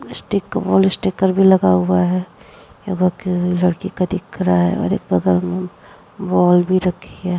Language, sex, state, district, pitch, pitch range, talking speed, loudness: Hindi, female, Bihar, Vaishali, 180 Hz, 165-190 Hz, 170 wpm, -17 LUFS